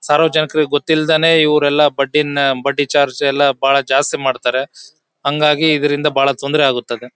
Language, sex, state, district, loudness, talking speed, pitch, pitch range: Kannada, male, Karnataka, Bellary, -14 LUFS, 125 wpm, 145 Hz, 135-150 Hz